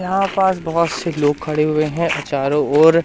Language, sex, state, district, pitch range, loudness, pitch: Hindi, male, Madhya Pradesh, Katni, 150-170 Hz, -17 LUFS, 160 Hz